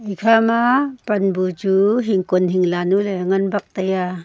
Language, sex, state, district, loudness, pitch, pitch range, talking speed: Wancho, female, Arunachal Pradesh, Longding, -18 LUFS, 195 Hz, 185-210 Hz, 140 wpm